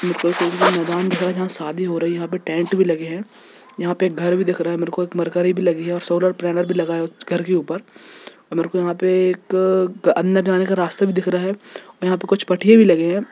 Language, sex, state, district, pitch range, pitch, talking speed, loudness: Hindi, male, Jharkhand, Jamtara, 175-185 Hz, 180 Hz, 230 wpm, -19 LUFS